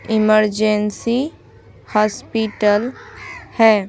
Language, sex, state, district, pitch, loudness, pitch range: Hindi, female, Bihar, Patna, 215 Hz, -17 LUFS, 210-225 Hz